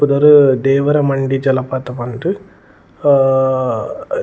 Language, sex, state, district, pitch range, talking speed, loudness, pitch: Tulu, male, Karnataka, Dakshina Kannada, 130-145 Hz, 100 wpm, -14 LUFS, 135 Hz